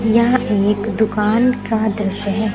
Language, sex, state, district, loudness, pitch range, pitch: Hindi, female, Uttar Pradesh, Lucknow, -17 LUFS, 210-225 Hz, 215 Hz